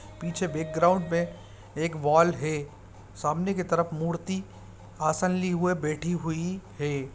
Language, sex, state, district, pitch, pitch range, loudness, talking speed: Hindi, male, Bihar, Saran, 160 Hz, 145-175 Hz, -28 LUFS, 140 wpm